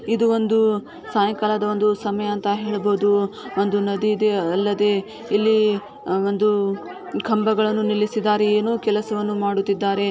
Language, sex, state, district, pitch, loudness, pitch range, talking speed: Kannada, female, Karnataka, Shimoga, 210 Hz, -21 LUFS, 205-215 Hz, 105 wpm